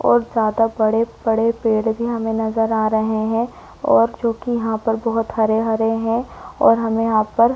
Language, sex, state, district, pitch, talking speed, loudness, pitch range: Hindi, female, Chhattisgarh, Korba, 225 Hz, 175 wpm, -19 LUFS, 220-230 Hz